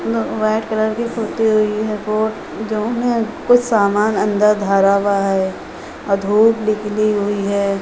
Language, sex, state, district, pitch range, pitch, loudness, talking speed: Hindi, female, Uttar Pradesh, Hamirpur, 200-220 Hz, 215 Hz, -17 LUFS, 155 wpm